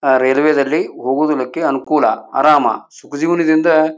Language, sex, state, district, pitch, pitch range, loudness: Kannada, male, Karnataka, Bijapur, 155 Hz, 140-155 Hz, -15 LUFS